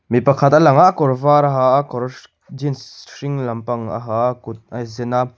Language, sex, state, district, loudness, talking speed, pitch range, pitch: Mizo, male, Mizoram, Aizawl, -16 LUFS, 245 wpm, 120-140 Hz, 125 Hz